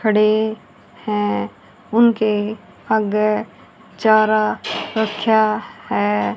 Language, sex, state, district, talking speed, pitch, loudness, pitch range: Hindi, female, Haryana, Rohtak, 65 wpm, 215 Hz, -18 LUFS, 210-220 Hz